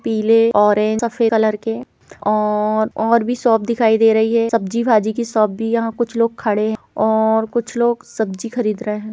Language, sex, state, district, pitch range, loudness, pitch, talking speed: Hindi, female, Chhattisgarh, Rajnandgaon, 215-230 Hz, -17 LUFS, 225 Hz, 195 wpm